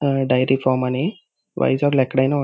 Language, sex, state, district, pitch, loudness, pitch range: Telugu, male, Andhra Pradesh, Visakhapatnam, 135 Hz, -19 LUFS, 130-140 Hz